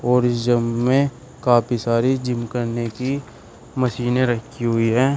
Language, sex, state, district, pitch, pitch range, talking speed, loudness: Hindi, male, Uttar Pradesh, Shamli, 120 Hz, 120-125 Hz, 150 wpm, -20 LUFS